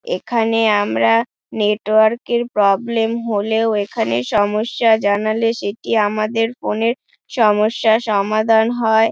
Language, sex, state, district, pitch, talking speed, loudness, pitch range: Bengali, female, West Bengal, Dakshin Dinajpur, 220 Hz, 105 wpm, -17 LUFS, 210-230 Hz